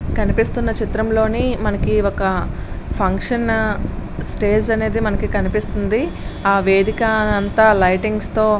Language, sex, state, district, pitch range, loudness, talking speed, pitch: Telugu, female, Andhra Pradesh, Srikakulam, 205-220 Hz, -18 LUFS, 100 wpm, 215 Hz